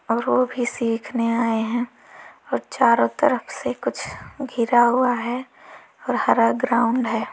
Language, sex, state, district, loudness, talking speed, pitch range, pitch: Hindi, female, Uttar Pradesh, Lalitpur, -21 LUFS, 145 wpm, 230-250 Hz, 240 Hz